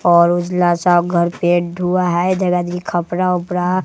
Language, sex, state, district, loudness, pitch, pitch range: Hindi, male, Bihar, West Champaran, -16 LUFS, 175 Hz, 175-180 Hz